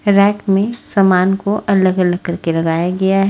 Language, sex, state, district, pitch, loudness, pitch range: Hindi, female, Haryana, Rohtak, 195 Hz, -15 LUFS, 180-200 Hz